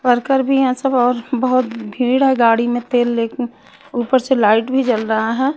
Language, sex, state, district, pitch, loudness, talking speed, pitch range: Hindi, female, Chhattisgarh, Raipur, 250 Hz, -16 LUFS, 205 wpm, 235-265 Hz